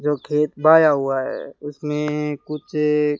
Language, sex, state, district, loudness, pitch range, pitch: Hindi, male, Rajasthan, Bikaner, -20 LUFS, 145-150 Hz, 150 Hz